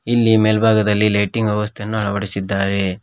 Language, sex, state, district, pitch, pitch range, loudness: Kannada, male, Karnataka, Koppal, 105 Hz, 100-110 Hz, -17 LUFS